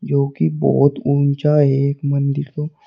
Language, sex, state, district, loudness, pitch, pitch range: Hindi, male, Uttar Pradesh, Saharanpur, -17 LUFS, 140 Hz, 140-145 Hz